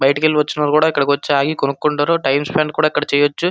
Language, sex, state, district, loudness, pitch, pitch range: Telugu, male, Andhra Pradesh, Srikakulam, -16 LUFS, 150 Hz, 140-155 Hz